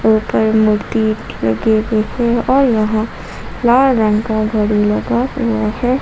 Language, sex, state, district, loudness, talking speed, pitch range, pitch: Hindi, female, Jharkhand, Ranchi, -15 LUFS, 140 wpm, 215-240 Hz, 220 Hz